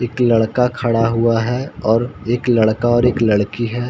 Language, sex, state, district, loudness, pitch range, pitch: Hindi, male, Uttar Pradesh, Ghazipur, -16 LUFS, 115-120 Hz, 120 Hz